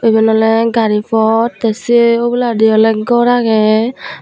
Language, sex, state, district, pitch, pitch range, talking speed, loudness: Chakma, female, Tripura, Unakoti, 225 Hz, 220-235 Hz, 140 wpm, -12 LUFS